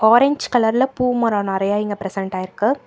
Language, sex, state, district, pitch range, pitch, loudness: Tamil, female, Karnataka, Bangalore, 195-250 Hz, 220 Hz, -19 LUFS